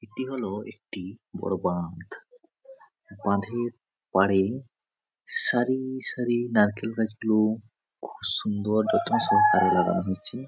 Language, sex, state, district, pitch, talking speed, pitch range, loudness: Bengali, male, West Bengal, Jhargram, 115 Hz, 95 wpm, 105-125 Hz, -25 LUFS